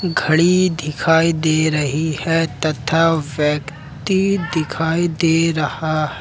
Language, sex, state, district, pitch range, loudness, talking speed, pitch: Hindi, male, Jharkhand, Ranchi, 155-165 Hz, -17 LUFS, 105 wpm, 160 Hz